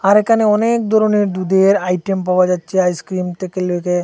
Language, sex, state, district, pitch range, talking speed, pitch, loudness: Bengali, male, Assam, Hailakandi, 180-210 Hz, 150 wpm, 190 Hz, -15 LUFS